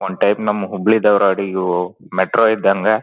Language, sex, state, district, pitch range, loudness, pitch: Kannada, male, Karnataka, Dharwad, 95-110 Hz, -16 LUFS, 100 Hz